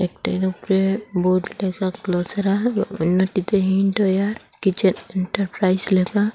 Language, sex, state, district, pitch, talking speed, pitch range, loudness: Bengali, female, Assam, Hailakandi, 190 Hz, 95 wpm, 185-205 Hz, -21 LUFS